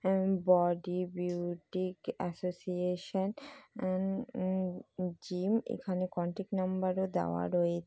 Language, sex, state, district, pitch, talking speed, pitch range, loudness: Bengali, female, West Bengal, Jalpaiguri, 185 Hz, 90 wpm, 180-190 Hz, -34 LUFS